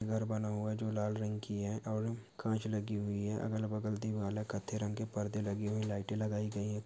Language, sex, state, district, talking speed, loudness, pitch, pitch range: Hindi, male, Bihar, Saharsa, 235 wpm, -38 LUFS, 105 Hz, 105-110 Hz